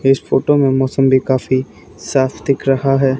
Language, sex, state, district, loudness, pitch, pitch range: Hindi, male, Haryana, Charkhi Dadri, -15 LUFS, 135 Hz, 130-135 Hz